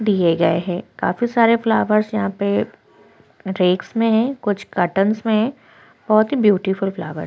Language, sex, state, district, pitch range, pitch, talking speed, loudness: Hindi, female, Chhattisgarh, Korba, 185-225 Hz, 205 Hz, 150 wpm, -19 LUFS